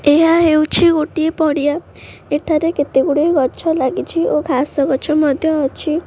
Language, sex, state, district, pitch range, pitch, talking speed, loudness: Odia, female, Odisha, Khordha, 290-320 Hz, 305 Hz, 140 wpm, -15 LUFS